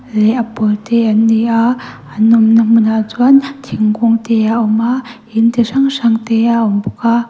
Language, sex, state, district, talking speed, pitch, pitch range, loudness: Mizo, female, Mizoram, Aizawl, 220 wpm, 230 Hz, 220-235 Hz, -12 LUFS